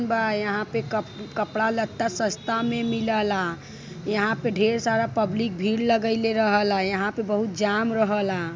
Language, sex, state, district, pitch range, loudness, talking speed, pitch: Bhojpuri, female, Uttar Pradesh, Varanasi, 205-225 Hz, -24 LUFS, 160 wpm, 215 Hz